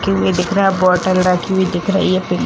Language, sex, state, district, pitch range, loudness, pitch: Hindi, female, Bihar, Jamui, 180-190 Hz, -15 LUFS, 185 Hz